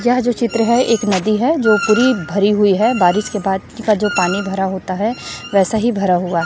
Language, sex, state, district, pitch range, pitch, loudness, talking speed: Hindi, female, Chhattisgarh, Raipur, 195-230 Hz, 210 Hz, -16 LUFS, 230 wpm